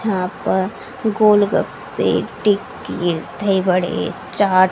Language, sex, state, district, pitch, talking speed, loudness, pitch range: Hindi, female, Haryana, Charkhi Dadri, 195 Hz, 90 wpm, -19 LUFS, 185-210 Hz